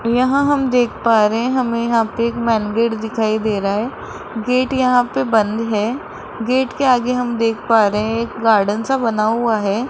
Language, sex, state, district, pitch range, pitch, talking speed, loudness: Hindi, female, Rajasthan, Jaipur, 220-250 Hz, 230 Hz, 205 wpm, -17 LUFS